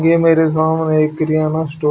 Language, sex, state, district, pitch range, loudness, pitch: Hindi, male, Haryana, Jhajjar, 155-160 Hz, -15 LUFS, 160 Hz